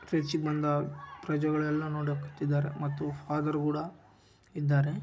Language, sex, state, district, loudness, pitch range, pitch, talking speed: Kannada, male, Karnataka, Raichur, -31 LUFS, 145-150 Hz, 150 Hz, 85 wpm